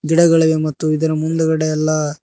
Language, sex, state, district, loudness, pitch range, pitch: Kannada, male, Karnataka, Koppal, -16 LUFS, 155-160 Hz, 155 Hz